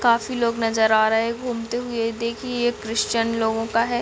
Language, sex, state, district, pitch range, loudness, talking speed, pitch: Hindi, female, Chhattisgarh, Bilaspur, 225-240 Hz, -22 LUFS, 210 wpm, 230 Hz